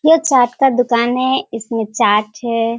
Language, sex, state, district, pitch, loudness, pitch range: Hindi, female, Bihar, Kishanganj, 240 Hz, -15 LUFS, 230-260 Hz